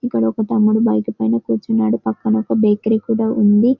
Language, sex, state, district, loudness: Telugu, female, Telangana, Karimnagar, -17 LUFS